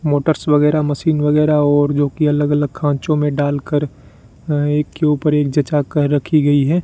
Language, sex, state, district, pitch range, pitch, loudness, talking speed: Hindi, male, Rajasthan, Bikaner, 145-150 Hz, 145 Hz, -16 LUFS, 200 wpm